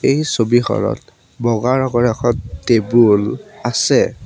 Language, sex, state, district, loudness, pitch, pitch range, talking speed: Assamese, male, Assam, Sonitpur, -16 LUFS, 120 Hz, 110-120 Hz, 100 wpm